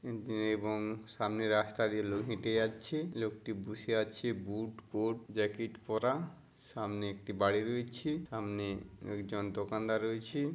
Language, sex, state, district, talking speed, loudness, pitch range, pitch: Bengali, male, West Bengal, Dakshin Dinajpur, 140 wpm, -36 LUFS, 105-115 Hz, 110 Hz